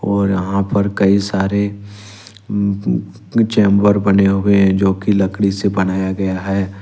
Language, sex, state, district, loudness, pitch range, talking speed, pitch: Hindi, male, Jharkhand, Ranchi, -16 LUFS, 95-100 Hz, 150 wpm, 100 Hz